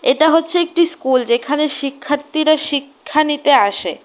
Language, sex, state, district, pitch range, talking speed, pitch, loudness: Bengali, female, Tripura, West Tripura, 275-315 Hz, 135 wpm, 295 Hz, -16 LUFS